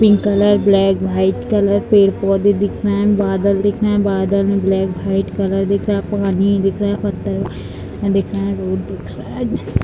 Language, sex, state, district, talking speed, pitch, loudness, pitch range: Hindi, female, Bihar, Purnia, 215 wpm, 200 Hz, -16 LUFS, 195-205 Hz